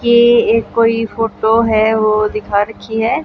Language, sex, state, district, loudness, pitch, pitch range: Hindi, female, Haryana, Jhajjar, -13 LUFS, 225 Hz, 215-230 Hz